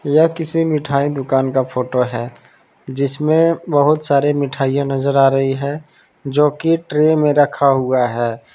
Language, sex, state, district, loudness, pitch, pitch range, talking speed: Hindi, male, Jharkhand, Palamu, -16 LUFS, 140 Hz, 135-150 Hz, 155 wpm